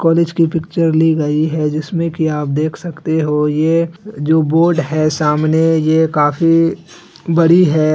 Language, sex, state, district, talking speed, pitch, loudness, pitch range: Hindi, male, Bihar, Araria, 160 wpm, 160 Hz, -14 LUFS, 155-165 Hz